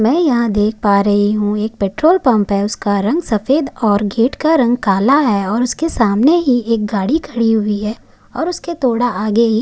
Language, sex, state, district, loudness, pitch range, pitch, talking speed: Hindi, female, Maharashtra, Chandrapur, -15 LUFS, 210-270 Hz, 230 Hz, 210 wpm